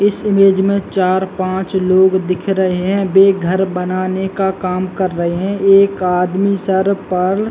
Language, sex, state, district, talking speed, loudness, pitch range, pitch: Hindi, male, Chhattisgarh, Bilaspur, 170 wpm, -15 LUFS, 185-195 Hz, 190 Hz